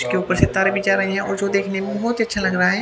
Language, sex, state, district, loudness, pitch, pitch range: Hindi, male, Haryana, Jhajjar, -19 LUFS, 195 Hz, 195-200 Hz